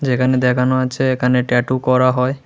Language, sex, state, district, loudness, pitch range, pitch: Bengali, male, Tripura, West Tripura, -16 LUFS, 125-130 Hz, 130 Hz